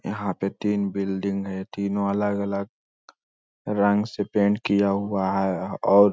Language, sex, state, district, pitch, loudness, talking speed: Magahi, male, Bihar, Lakhisarai, 100 Hz, -24 LUFS, 145 wpm